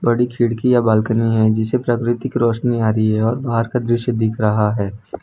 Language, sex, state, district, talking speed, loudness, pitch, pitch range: Hindi, male, Gujarat, Valsad, 205 wpm, -17 LUFS, 115 Hz, 110-120 Hz